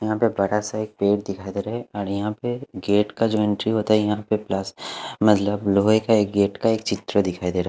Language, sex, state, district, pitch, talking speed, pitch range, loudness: Hindi, male, Haryana, Charkhi Dadri, 105 Hz, 265 wpm, 100-110 Hz, -22 LUFS